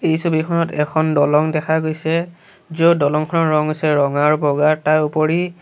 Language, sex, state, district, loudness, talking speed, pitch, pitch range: Assamese, male, Assam, Sonitpur, -17 LUFS, 160 wpm, 155 Hz, 150-165 Hz